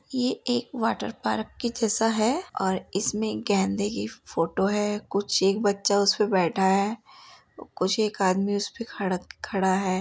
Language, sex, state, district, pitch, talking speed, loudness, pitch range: Hindi, female, Uttar Pradesh, Muzaffarnagar, 200 Hz, 170 wpm, -26 LUFS, 190-225 Hz